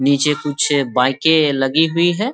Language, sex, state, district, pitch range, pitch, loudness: Hindi, male, Bihar, Saharsa, 140-160 Hz, 150 Hz, -16 LUFS